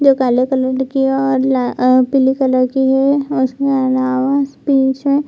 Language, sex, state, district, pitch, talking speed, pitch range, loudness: Hindi, female, Bihar, Jamui, 265 Hz, 160 wpm, 260-275 Hz, -15 LUFS